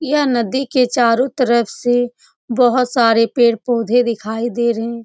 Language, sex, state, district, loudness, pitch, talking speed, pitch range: Hindi, female, Uttar Pradesh, Etah, -16 LUFS, 240 Hz, 145 wpm, 235-250 Hz